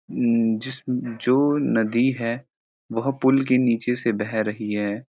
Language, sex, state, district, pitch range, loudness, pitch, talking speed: Hindi, male, Uttarakhand, Uttarkashi, 115-130 Hz, -22 LUFS, 120 Hz, 140 wpm